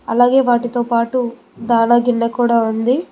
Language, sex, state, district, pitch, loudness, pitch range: Telugu, female, Telangana, Mahabubabad, 240 Hz, -16 LUFS, 230-245 Hz